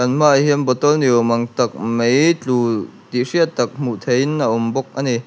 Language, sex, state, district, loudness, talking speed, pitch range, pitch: Mizo, male, Mizoram, Aizawl, -17 LUFS, 215 wpm, 120-145 Hz, 125 Hz